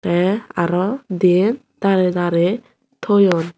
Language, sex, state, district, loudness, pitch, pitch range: Chakma, female, Tripura, Unakoti, -17 LUFS, 185 Hz, 175-215 Hz